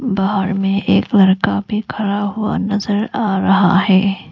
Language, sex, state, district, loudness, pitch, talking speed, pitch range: Hindi, female, Arunachal Pradesh, Lower Dibang Valley, -16 LUFS, 200 Hz, 155 wpm, 195-210 Hz